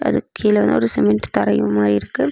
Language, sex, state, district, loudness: Tamil, female, Tamil Nadu, Namakkal, -17 LUFS